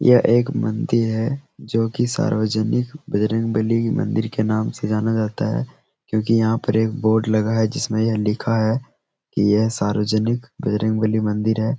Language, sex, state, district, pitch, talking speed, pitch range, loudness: Hindi, male, Bihar, Araria, 110 Hz, 165 wpm, 110-115 Hz, -20 LUFS